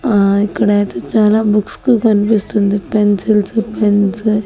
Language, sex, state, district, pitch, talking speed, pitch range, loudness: Telugu, female, Andhra Pradesh, Annamaya, 210 Hz, 110 wpm, 205-220 Hz, -14 LUFS